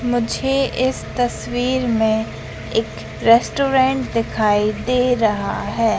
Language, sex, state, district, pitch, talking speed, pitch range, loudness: Hindi, female, Madhya Pradesh, Dhar, 240 Hz, 100 wpm, 225-255 Hz, -19 LUFS